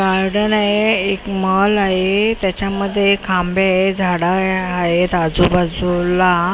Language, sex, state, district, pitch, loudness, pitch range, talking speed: Marathi, female, Maharashtra, Mumbai Suburban, 190 Hz, -16 LUFS, 180-200 Hz, 90 wpm